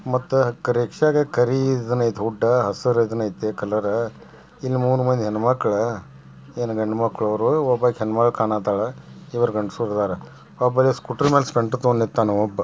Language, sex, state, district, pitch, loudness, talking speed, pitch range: Kannada, male, Karnataka, Belgaum, 115 Hz, -21 LUFS, 125 wpm, 105-125 Hz